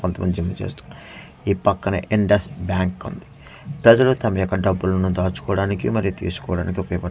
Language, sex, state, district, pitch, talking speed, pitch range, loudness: Telugu, male, Andhra Pradesh, Manyam, 95 Hz, 150 wpm, 90-105 Hz, -21 LUFS